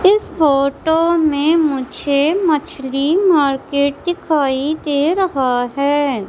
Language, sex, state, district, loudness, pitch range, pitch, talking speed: Hindi, female, Madhya Pradesh, Umaria, -16 LUFS, 275-325 Hz, 290 Hz, 95 wpm